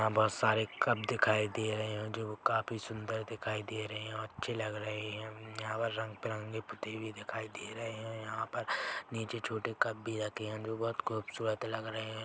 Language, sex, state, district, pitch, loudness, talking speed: Hindi, male, Chhattisgarh, Bilaspur, 110 Hz, -36 LUFS, 220 wpm